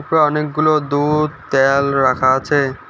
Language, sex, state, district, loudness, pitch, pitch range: Bengali, male, West Bengal, Alipurduar, -16 LUFS, 145 Hz, 135-150 Hz